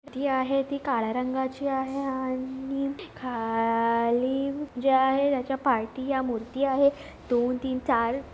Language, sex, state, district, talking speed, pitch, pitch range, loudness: Marathi, female, Maharashtra, Sindhudurg, 115 wpm, 265 Hz, 250-275 Hz, -27 LUFS